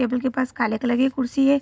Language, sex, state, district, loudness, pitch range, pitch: Hindi, female, Bihar, Vaishali, -22 LUFS, 245-265 Hz, 255 Hz